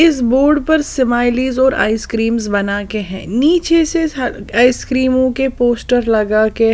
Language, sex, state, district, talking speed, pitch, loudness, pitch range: Hindi, female, Odisha, Sambalpur, 140 wpm, 245 Hz, -14 LUFS, 225-270 Hz